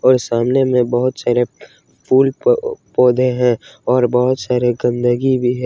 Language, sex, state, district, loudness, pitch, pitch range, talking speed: Hindi, male, Jharkhand, Ranchi, -16 LUFS, 125 Hz, 120-130 Hz, 150 wpm